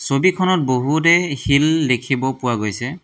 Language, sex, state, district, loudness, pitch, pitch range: Assamese, male, Assam, Hailakandi, -17 LUFS, 140 Hz, 130-165 Hz